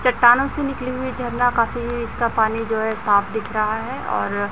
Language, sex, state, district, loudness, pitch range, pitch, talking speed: Hindi, male, Chhattisgarh, Raipur, -20 LUFS, 220-250 Hz, 235 Hz, 200 wpm